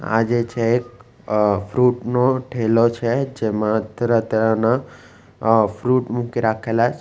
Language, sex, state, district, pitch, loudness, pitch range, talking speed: Gujarati, male, Gujarat, Valsad, 115 Hz, -19 LUFS, 110-120 Hz, 155 wpm